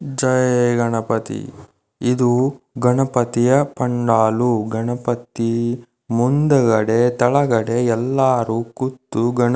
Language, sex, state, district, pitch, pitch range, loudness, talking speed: Kannada, male, Karnataka, Dharwad, 120 Hz, 115-130 Hz, -18 LUFS, 70 wpm